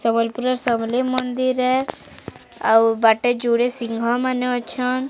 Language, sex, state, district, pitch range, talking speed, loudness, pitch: Odia, female, Odisha, Sambalpur, 230-255 Hz, 130 wpm, -20 LUFS, 245 Hz